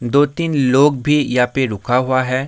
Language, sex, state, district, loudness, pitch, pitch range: Hindi, male, Bihar, Darbhanga, -16 LUFS, 130 Hz, 125-145 Hz